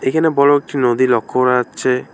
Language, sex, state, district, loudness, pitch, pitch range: Bengali, male, West Bengal, Alipurduar, -15 LUFS, 130 Hz, 125-140 Hz